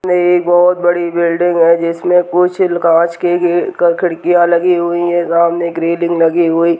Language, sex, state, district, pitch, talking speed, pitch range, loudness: Hindi, female, Uttarakhand, Tehri Garhwal, 175 Hz, 195 wpm, 170-175 Hz, -12 LUFS